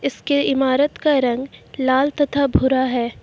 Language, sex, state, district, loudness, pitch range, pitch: Hindi, female, Uttar Pradesh, Lucknow, -19 LUFS, 260-285 Hz, 270 Hz